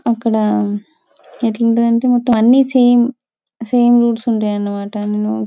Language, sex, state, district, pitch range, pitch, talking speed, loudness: Telugu, female, Telangana, Karimnagar, 210-240 Hz, 230 Hz, 90 wpm, -14 LUFS